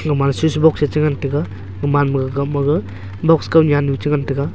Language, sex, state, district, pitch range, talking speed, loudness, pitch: Wancho, male, Arunachal Pradesh, Longding, 135-150 Hz, 235 wpm, -17 LUFS, 145 Hz